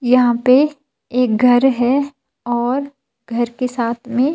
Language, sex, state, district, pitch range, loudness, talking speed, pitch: Hindi, female, Himachal Pradesh, Shimla, 240-270 Hz, -16 LUFS, 140 wpm, 250 Hz